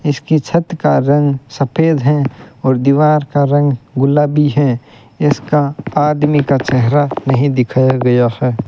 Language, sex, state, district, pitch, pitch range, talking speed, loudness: Hindi, male, Rajasthan, Bikaner, 145 Hz, 130-150 Hz, 140 wpm, -14 LUFS